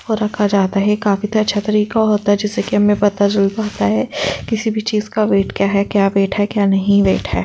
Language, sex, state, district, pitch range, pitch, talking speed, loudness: Hindi, female, Chhattisgarh, Kabirdham, 195-210 Hz, 205 Hz, 250 wpm, -16 LUFS